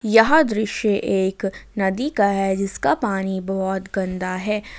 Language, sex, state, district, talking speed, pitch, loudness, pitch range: Hindi, female, Jharkhand, Ranchi, 140 wpm, 195 Hz, -21 LUFS, 190-215 Hz